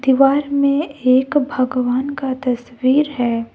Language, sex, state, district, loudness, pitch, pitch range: Hindi, female, Jharkhand, Deoghar, -17 LUFS, 265 Hz, 250-280 Hz